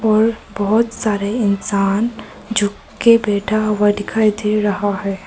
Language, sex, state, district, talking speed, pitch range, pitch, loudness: Hindi, male, Arunachal Pradesh, Papum Pare, 135 wpm, 205-220 Hz, 210 Hz, -17 LUFS